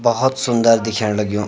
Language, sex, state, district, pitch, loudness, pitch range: Garhwali, male, Uttarakhand, Uttarkashi, 115 Hz, -17 LUFS, 105-120 Hz